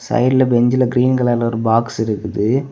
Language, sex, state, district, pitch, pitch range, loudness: Tamil, male, Tamil Nadu, Kanyakumari, 120 Hz, 115-130 Hz, -16 LUFS